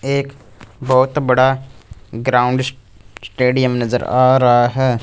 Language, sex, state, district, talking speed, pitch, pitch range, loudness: Hindi, male, Punjab, Fazilka, 110 wpm, 125 Hz, 115-130 Hz, -15 LUFS